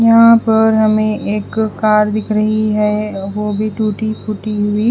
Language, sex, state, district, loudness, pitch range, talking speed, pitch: Hindi, female, Bihar, West Champaran, -14 LUFS, 210-220 Hz, 160 wpm, 215 Hz